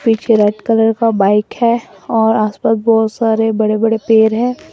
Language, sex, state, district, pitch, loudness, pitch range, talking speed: Hindi, female, Assam, Sonitpur, 225 Hz, -13 LUFS, 220-230 Hz, 175 wpm